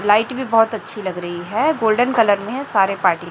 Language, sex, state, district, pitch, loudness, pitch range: Hindi, female, Chhattisgarh, Raipur, 220 Hz, -18 LUFS, 195-240 Hz